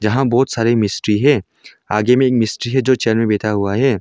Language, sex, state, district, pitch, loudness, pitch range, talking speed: Hindi, male, Arunachal Pradesh, Longding, 115 Hz, -16 LUFS, 105-130 Hz, 210 wpm